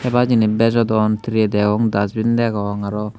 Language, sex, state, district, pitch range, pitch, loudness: Chakma, male, Tripura, Dhalai, 105-115 Hz, 110 Hz, -17 LUFS